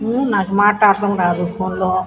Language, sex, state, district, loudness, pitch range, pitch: Telugu, female, Andhra Pradesh, Guntur, -16 LUFS, 185-210 Hz, 195 Hz